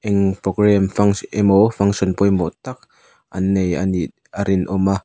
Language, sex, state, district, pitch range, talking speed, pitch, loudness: Mizo, male, Mizoram, Aizawl, 95-100 Hz, 155 wpm, 95 Hz, -18 LUFS